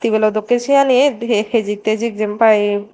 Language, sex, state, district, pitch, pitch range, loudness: Chakma, female, Tripura, Dhalai, 220 Hz, 215-240 Hz, -15 LUFS